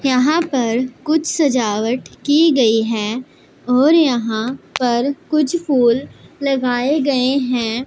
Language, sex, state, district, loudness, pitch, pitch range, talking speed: Hindi, female, Punjab, Pathankot, -17 LUFS, 255 Hz, 240-290 Hz, 115 wpm